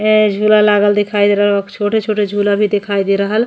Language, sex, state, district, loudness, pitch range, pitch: Bhojpuri, female, Uttar Pradesh, Ghazipur, -13 LUFS, 205-215 Hz, 205 Hz